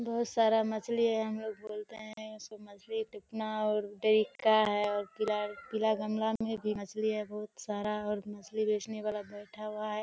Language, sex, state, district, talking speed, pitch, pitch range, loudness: Hindi, female, Bihar, Kishanganj, 180 wpm, 215 Hz, 210-220 Hz, -33 LUFS